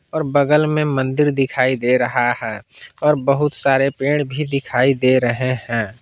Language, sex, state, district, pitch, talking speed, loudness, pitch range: Hindi, male, Jharkhand, Palamu, 135 Hz, 170 wpm, -18 LUFS, 125-145 Hz